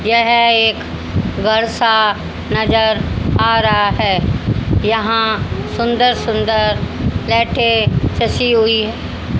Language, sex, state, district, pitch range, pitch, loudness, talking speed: Hindi, female, Haryana, Jhajjar, 220-230 Hz, 225 Hz, -15 LUFS, 90 wpm